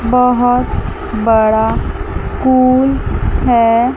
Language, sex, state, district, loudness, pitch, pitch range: Hindi, female, Chandigarh, Chandigarh, -13 LUFS, 245 Hz, 230-255 Hz